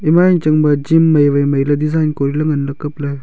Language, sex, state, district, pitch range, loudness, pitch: Wancho, male, Arunachal Pradesh, Longding, 140-155 Hz, -14 LUFS, 150 Hz